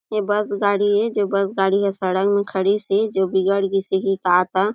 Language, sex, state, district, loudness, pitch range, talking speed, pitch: Chhattisgarhi, female, Chhattisgarh, Jashpur, -19 LUFS, 190-205 Hz, 215 wpm, 195 Hz